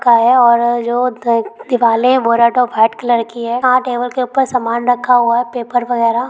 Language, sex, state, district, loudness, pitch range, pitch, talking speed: Hindi, female, Rajasthan, Nagaur, -14 LUFS, 235-250 Hz, 240 Hz, 85 wpm